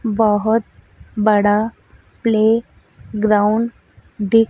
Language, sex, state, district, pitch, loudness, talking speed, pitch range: Hindi, female, Madhya Pradesh, Dhar, 220 Hz, -17 LUFS, 65 wpm, 210-225 Hz